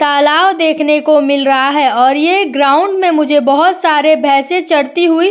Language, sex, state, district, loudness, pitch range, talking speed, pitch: Hindi, female, Uttar Pradesh, Etah, -10 LUFS, 285-340 Hz, 190 wpm, 300 Hz